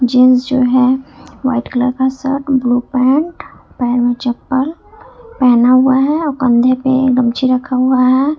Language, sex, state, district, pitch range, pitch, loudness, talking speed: Hindi, female, Jharkhand, Ranchi, 250-270 Hz, 255 Hz, -13 LUFS, 155 wpm